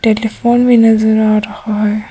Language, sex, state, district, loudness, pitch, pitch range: Hindi, female, Arunachal Pradesh, Papum Pare, -12 LUFS, 220 Hz, 210-225 Hz